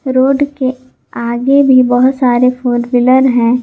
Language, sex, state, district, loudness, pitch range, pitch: Hindi, female, Jharkhand, Garhwa, -11 LUFS, 245-260 Hz, 255 Hz